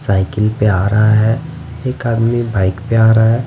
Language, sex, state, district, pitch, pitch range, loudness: Hindi, male, Bihar, West Champaran, 110 Hz, 105-120 Hz, -14 LUFS